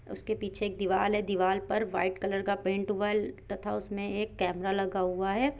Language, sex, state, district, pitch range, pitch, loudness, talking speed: Hindi, female, Bihar, Jahanabad, 190-210 Hz, 195 Hz, -31 LUFS, 205 wpm